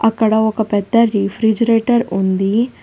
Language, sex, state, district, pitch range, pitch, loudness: Telugu, female, Telangana, Hyderabad, 205-230 Hz, 220 Hz, -15 LUFS